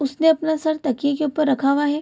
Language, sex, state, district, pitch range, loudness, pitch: Hindi, female, Bihar, Kishanganj, 280-315 Hz, -20 LUFS, 295 Hz